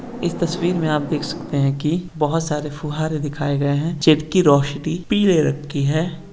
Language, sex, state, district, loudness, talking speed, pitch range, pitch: Hindi, male, Uttar Pradesh, Hamirpur, -20 LUFS, 190 wpm, 145-170 Hz, 155 Hz